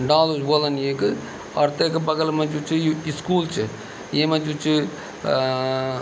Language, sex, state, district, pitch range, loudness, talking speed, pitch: Garhwali, male, Uttarakhand, Tehri Garhwal, 140-155 Hz, -22 LUFS, 180 wpm, 150 Hz